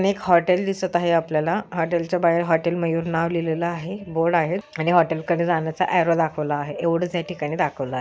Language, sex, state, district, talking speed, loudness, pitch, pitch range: Marathi, female, Maharashtra, Chandrapur, 200 wpm, -22 LUFS, 170 Hz, 165-180 Hz